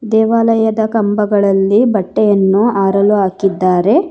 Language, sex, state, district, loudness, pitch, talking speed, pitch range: Kannada, female, Karnataka, Bangalore, -12 LUFS, 210 Hz, 75 wpm, 195-220 Hz